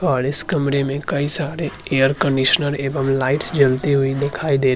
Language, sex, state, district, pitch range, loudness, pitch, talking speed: Hindi, male, Uttarakhand, Tehri Garhwal, 135-145 Hz, -18 LUFS, 140 Hz, 190 wpm